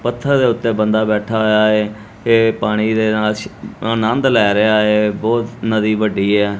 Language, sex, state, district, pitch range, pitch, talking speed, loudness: Punjabi, male, Punjab, Kapurthala, 105-110 Hz, 110 Hz, 170 wpm, -15 LUFS